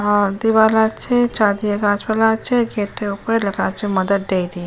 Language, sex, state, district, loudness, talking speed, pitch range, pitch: Bengali, female, West Bengal, Jalpaiguri, -18 LUFS, 180 wpm, 200-220 Hz, 210 Hz